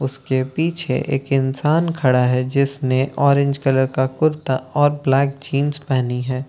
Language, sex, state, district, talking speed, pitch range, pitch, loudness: Hindi, male, Bihar, Katihar, 150 wpm, 130-145 Hz, 135 Hz, -19 LUFS